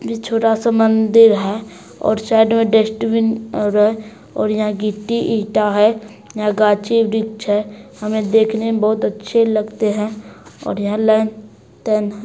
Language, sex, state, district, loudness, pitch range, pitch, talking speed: Hindi, female, Bihar, Supaul, -16 LUFS, 210-225 Hz, 220 Hz, 155 wpm